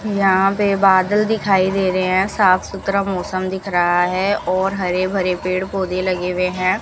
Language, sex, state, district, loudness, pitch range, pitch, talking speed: Hindi, female, Rajasthan, Bikaner, -18 LUFS, 185-195 Hz, 190 Hz, 185 wpm